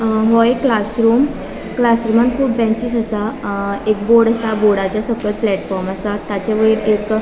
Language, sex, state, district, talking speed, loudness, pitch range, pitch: Konkani, female, Goa, North and South Goa, 160 wpm, -16 LUFS, 210-230 Hz, 220 Hz